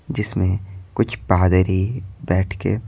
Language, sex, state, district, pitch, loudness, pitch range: Hindi, male, Bihar, Patna, 95 Hz, -20 LUFS, 90-105 Hz